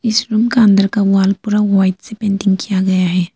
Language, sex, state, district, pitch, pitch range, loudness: Hindi, female, Arunachal Pradesh, Lower Dibang Valley, 200 Hz, 190-215 Hz, -14 LUFS